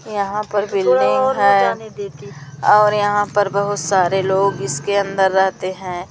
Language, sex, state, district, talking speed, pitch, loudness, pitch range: Hindi, female, Madhya Pradesh, Umaria, 135 wpm, 195 Hz, -17 LUFS, 185-205 Hz